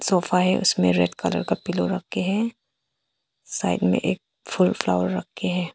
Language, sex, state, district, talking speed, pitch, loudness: Hindi, female, Arunachal Pradesh, Papum Pare, 190 wpm, 180 Hz, -23 LUFS